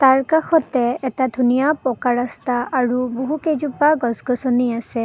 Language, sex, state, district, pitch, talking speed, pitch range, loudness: Assamese, female, Assam, Kamrup Metropolitan, 255 Hz, 120 wpm, 245-285 Hz, -19 LUFS